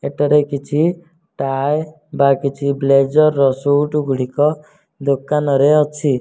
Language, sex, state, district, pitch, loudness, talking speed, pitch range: Odia, male, Odisha, Nuapada, 145 Hz, -16 LUFS, 105 wpm, 140-150 Hz